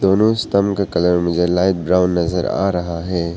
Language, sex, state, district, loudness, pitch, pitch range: Hindi, male, Arunachal Pradesh, Papum Pare, -17 LUFS, 90 Hz, 85-100 Hz